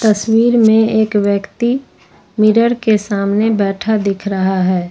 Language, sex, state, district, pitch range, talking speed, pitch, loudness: Hindi, female, Jharkhand, Ranchi, 200-220 Hz, 135 wpm, 215 Hz, -14 LUFS